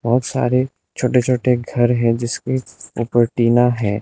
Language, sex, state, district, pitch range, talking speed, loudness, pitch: Hindi, male, Arunachal Pradesh, Lower Dibang Valley, 115-125 Hz, 150 wpm, -18 LUFS, 120 Hz